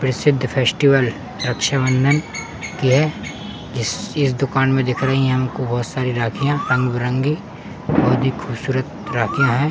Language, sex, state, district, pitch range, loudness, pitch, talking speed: Hindi, male, Uttar Pradesh, Muzaffarnagar, 125-140 Hz, -19 LUFS, 130 Hz, 125 wpm